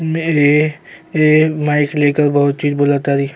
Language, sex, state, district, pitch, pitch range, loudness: Bhojpuri, male, Uttar Pradesh, Gorakhpur, 150 Hz, 145-155 Hz, -14 LUFS